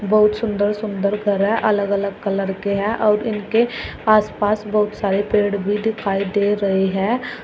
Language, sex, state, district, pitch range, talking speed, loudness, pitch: Hindi, female, Uttar Pradesh, Shamli, 200-215 Hz, 175 wpm, -19 LUFS, 205 Hz